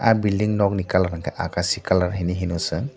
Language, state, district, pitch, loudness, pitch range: Kokborok, Tripura, Dhalai, 95 Hz, -22 LUFS, 90-105 Hz